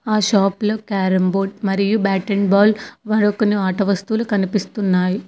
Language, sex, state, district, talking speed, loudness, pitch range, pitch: Telugu, female, Telangana, Hyderabad, 160 wpm, -18 LUFS, 195-215 Hz, 200 Hz